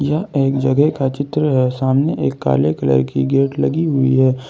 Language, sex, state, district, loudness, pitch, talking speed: Hindi, male, Jharkhand, Ranchi, -16 LUFS, 130 Hz, 200 wpm